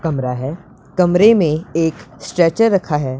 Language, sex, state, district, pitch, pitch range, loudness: Hindi, male, Punjab, Pathankot, 165 Hz, 145-180 Hz, -16 LUFS